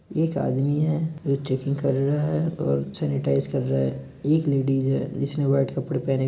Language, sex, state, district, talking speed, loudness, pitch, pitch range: Hindi, male, Bihar, East Champaran, 200 wpm, -24 LUFS, 140 Hz, 130-150 Hz